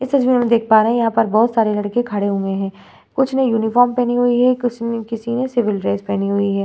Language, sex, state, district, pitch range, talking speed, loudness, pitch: Hindi, female, Bihar, Vaishali, 205-245 Hz, 290 wpm, -17 LUFS, 230 Hz